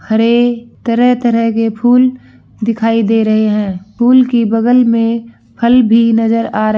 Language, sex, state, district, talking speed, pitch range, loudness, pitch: Hindi, female, Uttar Pradesh, Varanasi, 160 wpm, 225-240 Hz, -12 LUFS, 230 Hz